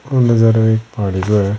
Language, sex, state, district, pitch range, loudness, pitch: Hindi, male, Rajasthan, Churu, 100-115 Hz, -14 LUFS, 110 Hz